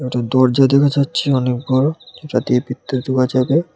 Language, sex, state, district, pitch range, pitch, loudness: Bengali, male, Tripura, West Tripura, 125-140 Hz, 130 Hz, -17 LUFS